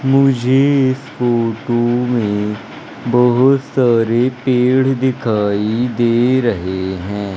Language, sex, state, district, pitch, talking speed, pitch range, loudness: Hindi, male, Madhya Pradesh, Umaria, 120 Hz, 90 wpm, 115-130 Hz, -15 LUFS